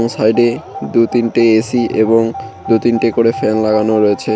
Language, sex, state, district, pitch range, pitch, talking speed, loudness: Bengali, male, West Bengal, Cooch Behar, 110-115 Hz, 115 Hz, 150 wpm, -13 LUFS